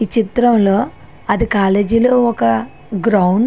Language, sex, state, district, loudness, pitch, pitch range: Telugu, female, Andhra Pradesh, Srikakulam, -15 LUFS, 215 Hz, 195-235 Hz